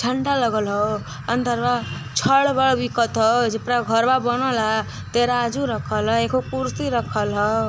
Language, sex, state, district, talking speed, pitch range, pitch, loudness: Hindi, female, Uttar Pradesh, Varanasi, 30 wpm, 220-250 Hz, 240 Hz, -21 LUFS